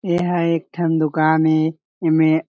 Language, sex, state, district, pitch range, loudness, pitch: Chhattisgarhi, male, Chhattisgarh, Jashpur, 155-170 Hz, -18 LUFS, 160 Hz